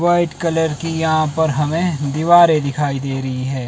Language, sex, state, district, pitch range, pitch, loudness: Hindi, male, Himachal Pradesh, Shimla, 140-165 Hz, 155 Hz, -17 LUFS